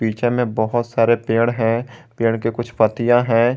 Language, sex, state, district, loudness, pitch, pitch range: Hindi, male, Jharkhand, Garhwa, -18 LUFS, 115 Hz, 115-120 Hz